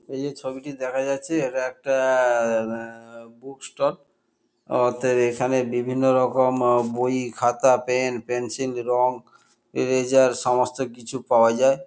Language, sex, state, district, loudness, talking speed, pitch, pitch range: Bengali, male, West Bengal, Kolkata, -22 LUFS, 120 wpm, 125 Hz, 120-130 Hz